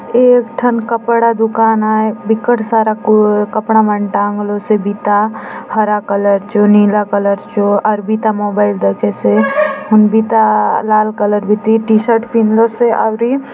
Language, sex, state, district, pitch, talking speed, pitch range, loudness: Halbi, female, Chhattisgarh, Bastar, 215 Hz, 140 wpm, 205-225 Hz, -12 LUFS